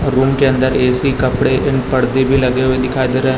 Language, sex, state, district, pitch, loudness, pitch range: Hindi, male, Chhattisgarh, Raipur, 130 Hz, -14 LUFS, 130-135 Hz